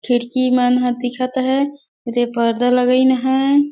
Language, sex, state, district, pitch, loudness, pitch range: Surgujia, female, Chhattisgarh, Sarguja, 250 Hz, -17 LUFS, 245-260 Hz